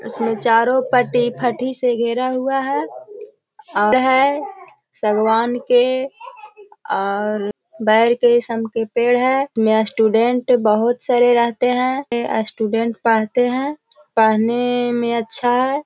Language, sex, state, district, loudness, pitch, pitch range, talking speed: Hindi, female, Bihar, Jahanabad, -17 LUFS, 245 Hz, 225-260 Hz, 120 wpm